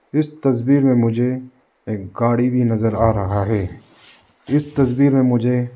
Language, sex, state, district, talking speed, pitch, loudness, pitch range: Hindi, male, Arunachal Pradesh, Lower Dibang Valley, 155 wpm, 125 Hz, -18 LUFS, 115-135 Hz